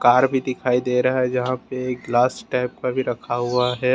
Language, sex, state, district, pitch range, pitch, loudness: Hindi, male, Jharkhand, Deoghar, 125-130 Hz, 125 Hz, -21 LUFS